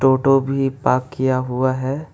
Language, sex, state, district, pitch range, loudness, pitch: Hindi, male, West Bengal, Alipurduar, 130-135 Hz, -19 LUFS, 130 Hz